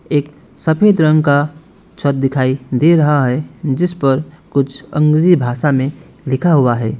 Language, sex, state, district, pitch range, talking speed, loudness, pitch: Hindi, male, West Bengal, Alipurduar, 135-160 Hz, 155 wpm, -15 LUFS, 145 Hz